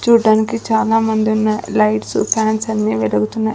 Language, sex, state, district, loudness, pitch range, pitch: Telugu, female, Andhra Pradesh, Sri Satya Sai, -16 LUFS, 210-220 Hz, 220 Hz